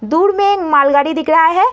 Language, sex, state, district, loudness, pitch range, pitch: Hindi, female, Uttar Pradesh, Muzaffarnagar, -12 LUFS, 290-385 Hz, 325 Hz